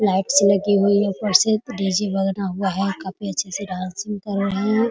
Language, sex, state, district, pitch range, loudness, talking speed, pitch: Hindi, female, Bihar, Muzaffarpur, 195-205 Hz, -20 LUFS, 245 wpm, 200 Hz